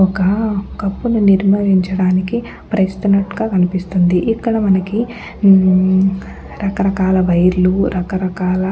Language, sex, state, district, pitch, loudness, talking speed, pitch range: Telugu, female, Andhra Pradesh, Guntur, 190 Hz, -15 LUFS, 85 wpm, 185-200 Hz